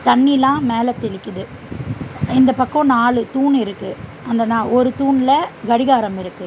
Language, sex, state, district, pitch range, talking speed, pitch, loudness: Tamil, female, Tamil Nadu, Chennai, 190-260 Hz, 130 wpm, 235 Hz, -16 LUFS